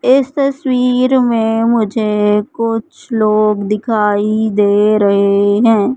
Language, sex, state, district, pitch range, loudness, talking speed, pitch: Hindi, male, Madhya Pradesh, Katni, 210-245 Hz, -13 LUFS, 100 wpm, 220 Hz